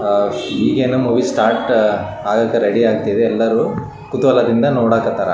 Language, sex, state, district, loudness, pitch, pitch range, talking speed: Kannada, male, Karnataka, Raichur, -15 LUFS, 115 Hz, 105-120 Hz, 135 wpm